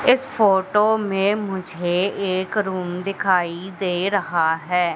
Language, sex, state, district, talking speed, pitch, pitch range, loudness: Hindi, female, Madhya Pradesh, Katni, 120 wpm, 190 Hz, 180-200 Hz, -21 LUFS